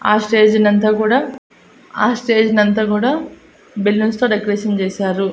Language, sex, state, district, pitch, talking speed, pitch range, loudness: Telugu, female, Andhra Pradesh, Annamaya, 215 Hz, 135 wpm, 205-225 Hz, -15 LUFS